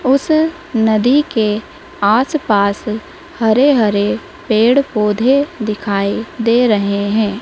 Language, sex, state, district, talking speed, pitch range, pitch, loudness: Hindi, female, Madhya Pradesh, Dhar, 105 wpm, 210-275 Hz, 225 Hz, -15 LUFS